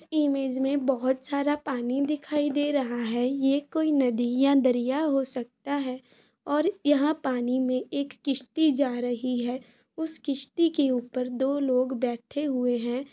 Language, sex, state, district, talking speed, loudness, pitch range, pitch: Hindi, female, Bihar, Saran, 160 wpm, -27 LUFS, 250-290 Hz, 270 Hz